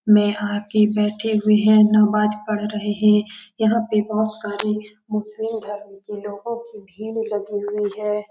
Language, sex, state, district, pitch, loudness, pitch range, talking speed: Hindi, female, Bihar, Saran, 210 Hz, -20 LUFS, 210-215 Hz, 145 wpm